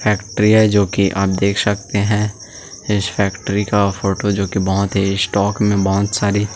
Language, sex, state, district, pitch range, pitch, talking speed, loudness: Hindi, male, Chhattisgarh, Sukma, 100-105 Hz, 100 Hz, 165 wpm, -17 LUFS